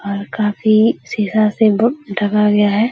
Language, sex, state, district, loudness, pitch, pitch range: Hindi, female, Bihar, Araria, -15 LUFS, 210 Hz, 205-220 Hz